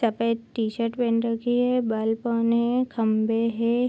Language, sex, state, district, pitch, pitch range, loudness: Hindi, female, Bihar, Supaul, 230 Hz, 225-240 Hz, -24 LUFS